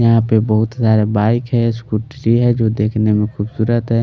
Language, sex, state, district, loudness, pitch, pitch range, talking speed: Hindi, male, Delhi, New Delhi, -16 LUFS, 115 Hz, 110-115 Hz, 180 wpm